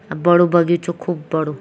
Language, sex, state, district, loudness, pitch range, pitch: Kumaoni, female, Uttarakhand, Tehri Garhwal, -17 LUFS, 160-175 Hz, 175 Hz